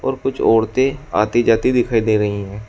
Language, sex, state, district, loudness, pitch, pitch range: Hindi, male, Uttar Pradesh, Shamli, -17 LUFS, 115 Hz, 105-130 Hz